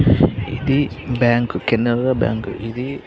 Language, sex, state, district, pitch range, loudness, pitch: Telugu, male, Andhra Pradesh, Srikakulam, 110-130 Hz, -19 LUFS, 120 Hz